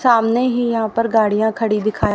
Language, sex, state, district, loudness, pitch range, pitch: Hindi, female, Haryana, Rohtak, -17 LUFS, 215-235 Hz, 225 Hz